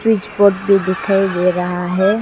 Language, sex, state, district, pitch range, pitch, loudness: Hindi, female, Arunachal Pradesh, Lower Dibang Valley, 180-200 Hz, 195 Hz, -15 LUFS